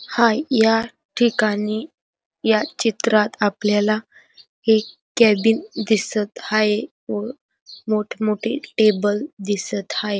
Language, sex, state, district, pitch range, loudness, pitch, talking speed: Marathi, female, Maharashtra, Dhule, 210-230 Hz, -20 LUFS, 220 Hz, 90 wpm